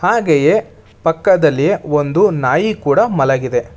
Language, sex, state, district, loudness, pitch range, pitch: Kannada, male, Karnataka, Bangalore, -14 LUFS, 135-175 Hz, 150 Hz